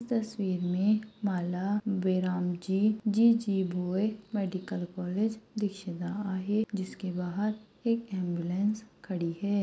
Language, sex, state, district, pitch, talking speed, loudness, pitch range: Hindi, female, Maharashtra, Pune, 195 Hz, 95 wpm, -31 LUFS, 185-215 Hz